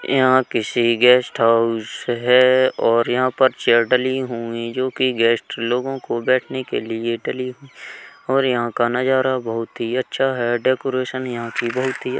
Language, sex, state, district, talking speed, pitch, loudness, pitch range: Hindi, male, Uttar Pradesh, Hamirpur, 170 wpm, 125 Hz, -19 LUFS, 115-130 Hz